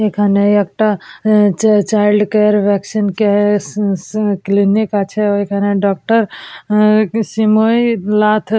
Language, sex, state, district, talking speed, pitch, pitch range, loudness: Bengali, female, West Bengal, Purulia, 100 wpm, 210 Hz, 200-215 Hz, -14 LUFS